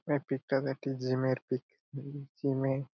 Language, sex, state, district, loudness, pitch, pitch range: Bengali, male, West Bengal, Purulia, -34 LUFS, 135 Hz, 130-140 Hz